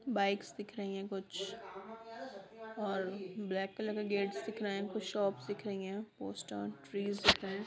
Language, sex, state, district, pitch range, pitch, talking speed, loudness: Hindi, female, Bihar, Sitamarhi, 195-210 Hz, 200 Hz, 180 wpm, -38 LUFS